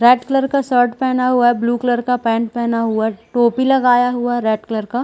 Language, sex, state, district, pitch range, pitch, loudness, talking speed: Hindi, female, Chhattisgarh, Balrampur, 230-250 Hz, 245 Hz, -16 LUFS, 250 wpm